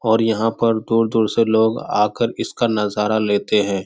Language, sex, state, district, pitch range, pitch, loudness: Hindi, male, Bihar, Jahanabad, 105-115 Hz, 110 Hz, -18 LUFS